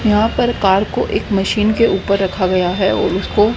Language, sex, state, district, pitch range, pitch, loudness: Hindi, female, Haryana, Rohtak, 190-215 Hz, 200 Hz, -16 LUFS